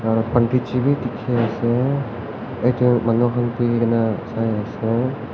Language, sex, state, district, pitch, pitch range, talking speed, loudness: Nagamese, male, Nagaland, Kohima, 120 Hz, 115-125 Hz, 145 wpm, -20 LUFS